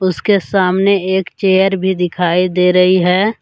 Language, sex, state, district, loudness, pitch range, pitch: Hindi, male, Jharkhand, Deoghar, -13 LUFS, 180-195 Hz, 185 Hz